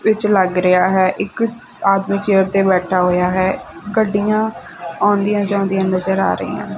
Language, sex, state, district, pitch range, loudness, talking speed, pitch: Punjabi, female, Punjab, Fazilka, 185-210 Hz, -16 LUFS, 160 wpm, 195 Hz